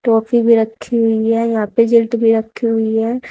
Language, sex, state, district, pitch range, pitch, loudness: Hindi, female, Haryana, Rohtak, 225-235 Hz, 230 Hz, -15 LUFS